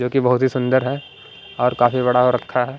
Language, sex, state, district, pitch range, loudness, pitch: Hindi, male, Maharashtra, Mumbai Suburban, 125-130 Hz, -18 LUFS, 125 Hz